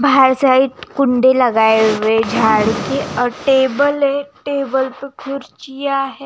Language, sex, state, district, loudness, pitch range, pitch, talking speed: Hindi, female, Himachal Pradesh, Shimla, -15 LUFS, 245-275 Hz, 265 Hz, 145 wpm